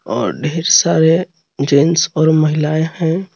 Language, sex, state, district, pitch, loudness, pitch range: Hindi, male, Jharkhand, Garhwa, 160 Hz, -14 LUFS, 155-170 Hz